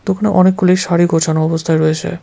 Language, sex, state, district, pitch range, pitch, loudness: Bengali, male, West Bengal, Cooch Behar, 160-185 Hz, 170 Hz, -13 LUFS